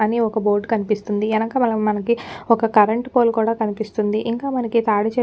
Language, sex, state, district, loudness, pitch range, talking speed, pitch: Telugu, female, Telangana, Nalgonda, -19 LUFS, 215-230 Hz, 170 wpm, 225 Hz